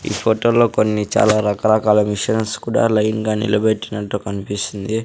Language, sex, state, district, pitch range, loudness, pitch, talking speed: Telugu, male, Andhra Pradesh, Sri Satya Sai, 105-110 Hz, -18 LUFS, 110 Hz, 140 wpm